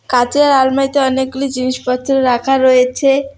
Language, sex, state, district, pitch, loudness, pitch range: Bengali, female, West Bengal, Alipurduar, 265 Hz, -13 LUFS, 255-275 Hz